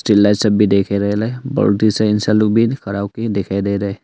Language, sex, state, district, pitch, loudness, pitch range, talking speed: Hindi, male, Arunachal Pradesh, Longding, 105 Hz, -16 LUFS, 100-110 Hz, 270 wpm